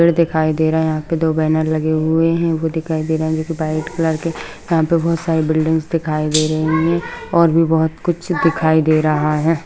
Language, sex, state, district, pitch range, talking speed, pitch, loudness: Hindi, female, Bihar, Saran, 155-165 Hz, 240 wpm, 160 Hz, -17 LUFS